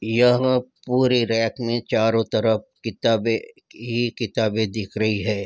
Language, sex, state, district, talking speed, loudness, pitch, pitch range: Hindi, male, Bihar, Madhepura, 130 wpm, -22 LUFS, 115 Hz, 110-120 Hz